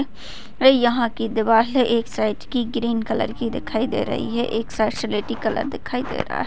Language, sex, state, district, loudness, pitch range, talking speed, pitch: Hindi, female, Bihar, Madhepura, -22 LUFS, 225-245 Hz, 195 wpm, 235 Hz